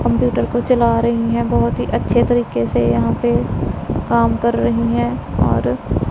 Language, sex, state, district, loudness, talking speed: Hindi, female, Punjab, Pathankot, -17 LUFS, 165 wpm